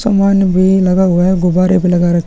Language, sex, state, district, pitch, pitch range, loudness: Hindi, male, Chhattisgarh, Kabirdham, 185 Hz, 180-190 Hz, -11 LUFS